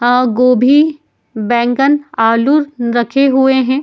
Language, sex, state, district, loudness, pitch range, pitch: Hindi, female, Uttar Pradesh, Jyotiba Phule Nagar, -12 LUFS, 240-280 Hz, 255 Hz